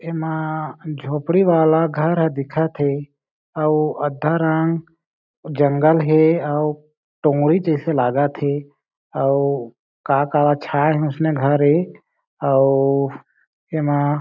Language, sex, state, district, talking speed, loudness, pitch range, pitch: Chhattisgarhi, male, Chhattisgarh, Jashpur, 120 wpm, -19 LUFS, 145-160 Hz, 150 Hz